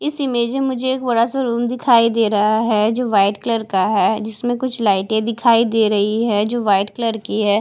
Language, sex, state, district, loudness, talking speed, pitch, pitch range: Hindi, female, Haryana, Charkhi Dadri, -17 LUFS, 215 wpm, 230 Hz, 210-240 Hz